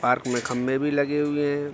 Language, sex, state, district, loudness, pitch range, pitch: Hindi, male, Bihar, Araria, -24 LUFS, 125-145 Hz, 145 Hz